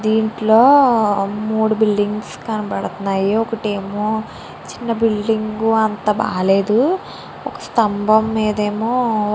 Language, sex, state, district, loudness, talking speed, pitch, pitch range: Telugu, female, Andhra Pradesh, Srikakulam, -17 LUFS, 90 wpm, 215 Hz, 210-225 Hz